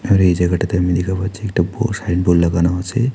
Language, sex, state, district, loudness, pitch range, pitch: Bengali, male, West Bengal, Alipurduar, -17 LUFS, 90-100 Hz, 90 Hz